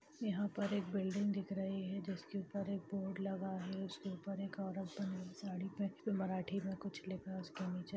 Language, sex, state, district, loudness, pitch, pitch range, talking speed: Hindi, female, Chhattisgarh, Raigarh, -43 LUFS, 195 Hz, 190-200 Hz, 220 wpm